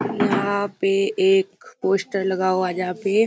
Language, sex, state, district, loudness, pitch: Hindi, female, Bihar, Kishanganj, -21 LUFS, 200 Hz